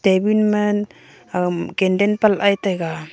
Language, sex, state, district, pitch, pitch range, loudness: Wancho, female, Arunachal Pradesh, Longding, 200 Hz, 180-210 Hz, -19 LUFS